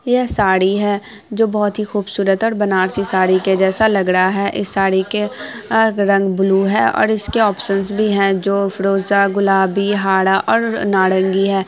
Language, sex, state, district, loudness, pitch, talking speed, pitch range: Hindi, female, Bihar, Araria, -16 LUFS, 195 Hz, 175 wpm, 190-205 Hz